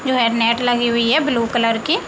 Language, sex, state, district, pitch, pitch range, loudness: Hindi, female, Uttar Pradesh, Deoria, 235 Hz, 230-255 Hz, -17 LUFS